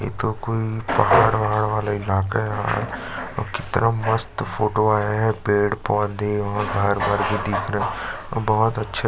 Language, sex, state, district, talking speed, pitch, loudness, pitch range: Hindi, male, Chhattisgarh, Jashpur, 160 wpm, 105 Hz, -22 LUFS, 105-110 Hz